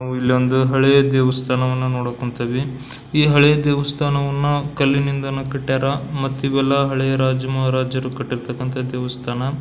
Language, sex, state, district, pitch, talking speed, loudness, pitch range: Kannada, male, Karnataka, Belgaum, 135 Hz, 105 wpm, -19 LUFS, 130-140 Hz